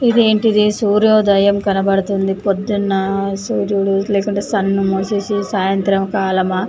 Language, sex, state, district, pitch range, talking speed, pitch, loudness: Telugu, female, Telangana, Nalgonda, 195-205 Hz, 90 wpm, 200 Hz, -16 LUFS